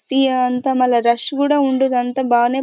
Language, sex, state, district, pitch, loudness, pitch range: Telugu, female, Karnataka, Bellary, 260 Hz, -16 LUFS, 245-270 Hz